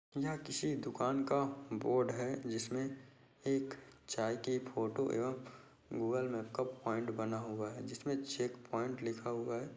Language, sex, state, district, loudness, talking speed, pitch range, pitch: Hindi, male, Chhattisgarh, Korba, -39 LUFS, 145 wpm, 115-135 Hz, 125 Hz